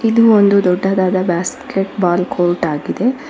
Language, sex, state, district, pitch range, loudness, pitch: Kannada, female, Karnataka, Bangalore, 180-225 Hz, -15 LUFS, 190 Hz